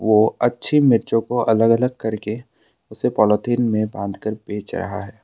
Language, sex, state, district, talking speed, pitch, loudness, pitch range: Hindi, male, Assam, Sonitpur, 160 wpm, 110 Hz, -20 LUFS, 105-120 Hz